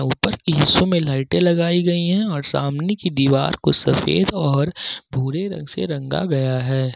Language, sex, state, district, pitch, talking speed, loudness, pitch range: Hindi, male, Jharkhand, Ranchi, 155 Hz, 180 wpm, -19 LUFS, 135-180 Hz